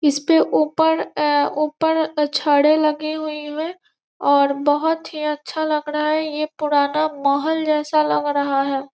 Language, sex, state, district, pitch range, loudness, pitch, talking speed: Hindi, female, Bihar, Gopalganj, 290-310 Hz, -19 LUFS, 300 Hz, 150 wpm